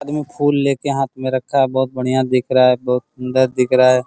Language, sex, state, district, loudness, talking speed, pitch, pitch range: Hindi, male, Bihar, Araria, -17 LUFS, 280 wpm, 130 Hz, 125-135 Hz